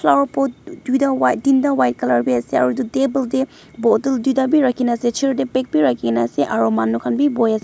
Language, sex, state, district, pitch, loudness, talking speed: Nagamese, female, Nagaland, Dimapur, 255 Hz, -18 LUFS, 210 wpm